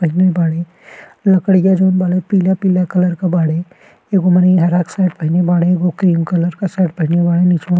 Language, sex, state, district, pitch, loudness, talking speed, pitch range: Bhojpuri, male, Uttar Pradesh, Gorakhpur, 180 Hz, -14 LUFS, 185 wpm, 175-185 Hz